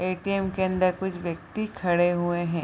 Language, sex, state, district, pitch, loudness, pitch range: Hindi, female, Bihar, Bhagalpur, 180 Hz, -26 LUFS, 175-190 Hz